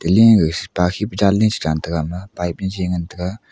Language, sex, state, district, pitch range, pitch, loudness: Wancho, male, Arunachal Pradesh, Longding, 85-100 Hz, 90 Hz, -18 LUFS